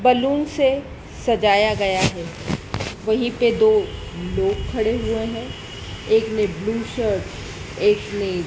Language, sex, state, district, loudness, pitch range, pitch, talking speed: Hindi, male, Madhya Pradesh, Dhar, -21 LUFS, 215-270 Hz, 225 Hz, 135 wpm